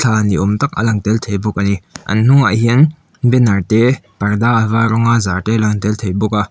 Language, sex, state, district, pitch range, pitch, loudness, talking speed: Mizo, male, Mizoram, Aizawl, 105-115 Hz, 110 Hz, -14 LUFS, 255 wpm